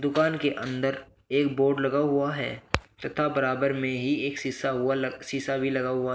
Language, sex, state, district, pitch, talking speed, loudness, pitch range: Hindi, male, Uttar Pradesh, Shamli, 135 Hz, 185 wpm, -27 LUFS, 130-140 Hz